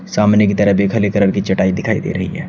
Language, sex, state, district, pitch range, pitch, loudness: Hindi, male, Uttar Pradesh, Shamli, 100-105 Hz, 100 Hz, -15 LUFS